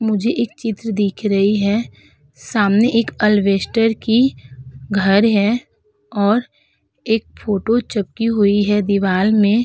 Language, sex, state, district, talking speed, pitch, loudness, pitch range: Hindi, female, Uttar Pradesh, Budaun, 125 wpm, 210 Hz, -17 LUFS, 200-225 Hz